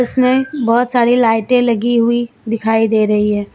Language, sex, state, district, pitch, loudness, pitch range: Hindi, female, Jharkhand, Deoghar, 235 Hz, -14 LUFS, 225-245 Hz